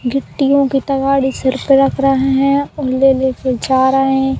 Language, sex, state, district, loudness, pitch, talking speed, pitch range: Hindi, female, Uttar Pradesh, Jalaun, -14 LUFS, 270 Hz, 190 wpm, 265-275 Hz